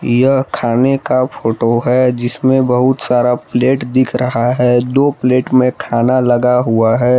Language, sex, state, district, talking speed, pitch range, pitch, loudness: Hindi, male, Jharkhand, Palamu, 160 wpm, 120-130 Hz, 125 Hz, -13 LUFS